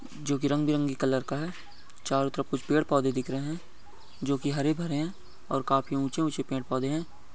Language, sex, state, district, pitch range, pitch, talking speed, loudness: Hindi, male, Goa, North and South Goa, 135-155 Hz, 140 Hz, 220 wpm, -29 LUFS